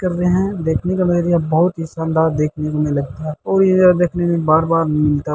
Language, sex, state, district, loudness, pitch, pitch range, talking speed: Hindi, male, Bihar, Saharsa, -17 LUFS, 165 Hz, 150-175 Hz, 260 wpm